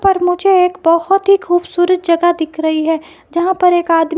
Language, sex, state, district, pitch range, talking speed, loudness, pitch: Hindi, female, Himachal Pradesh, Shimla, 330-365 Hz, 200 wpm, -13 LUFS, 350 Hz